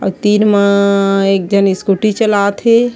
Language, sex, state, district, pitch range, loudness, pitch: Chhattisgarhi, female, Chhattisgarh, Sarguja, 195-215 Hz, -12 LUFS, 200 Hz